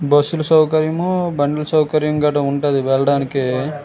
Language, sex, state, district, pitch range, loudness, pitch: Telugu, male, Andhra Pradesh, Srikakulam, 140-155 Hz, -17 LUFS, 150 Hz